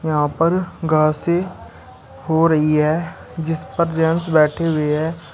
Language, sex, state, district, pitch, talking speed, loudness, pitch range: Hindi, male, Uttar Pradesh, Shamli, 160 Hz, 125 wpm, -18 LUFS, 150-165 Hz